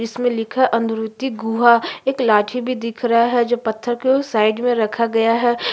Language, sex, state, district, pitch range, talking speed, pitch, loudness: Hindi, female, Uttarakhand, Tehri Garhwal, 225-245 Hz, 220 wpm, 235 Hz, -18 LUFS